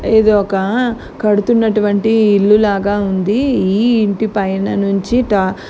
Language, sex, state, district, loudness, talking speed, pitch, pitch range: Telugu, female, Telangana, Nalgonda, -14 LUFS, 125 wpm, 205 Hz, 200-220 Hz